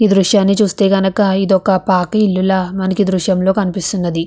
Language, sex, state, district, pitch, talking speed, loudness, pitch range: Telugu, female, Andhra Pradesh, Visakhapatnam, 190 Hz, 140 wpm, -14 LUFS, 185-200 Hz